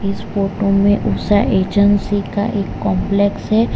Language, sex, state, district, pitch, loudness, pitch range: Hindi, male, Gujarat, Valsad, 200 Hz, -16 LUFS, 195-205 Hz